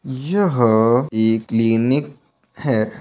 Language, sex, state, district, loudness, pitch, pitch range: Hindi, male, Bihar, Bhagalpur, -17 LUFS, 125 Hz, 115-140 Hz